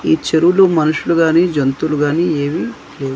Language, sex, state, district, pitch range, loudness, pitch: Telugu, male, Andhra Pradesh, Manyam, 145-170 Hz, -14 LUFS, 160 Hz